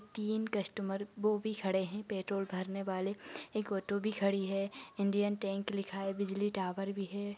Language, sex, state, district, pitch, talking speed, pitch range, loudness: Hindi, female, Chhattisgarh, Kabirdham, 200 Hz, 180 wpm, 195-205 Hz, -36 LUFS